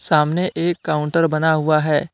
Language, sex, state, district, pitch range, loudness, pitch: Hindi, male, Jharkhand, Deoghar, 150-170 Hz, -18 LUFS, 160 Hz